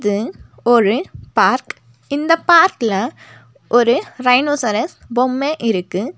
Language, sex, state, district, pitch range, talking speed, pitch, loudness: Tamil, female, Tamil Nadu, Nilgiris, 210-285 Hz, 85 wpm, 240 Hz, -16 LUFS